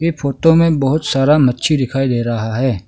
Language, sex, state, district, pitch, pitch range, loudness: Hindi, male, Arunachal Pradesh, Longding, 135 Hz, 125-150 Hz, -15 LUFS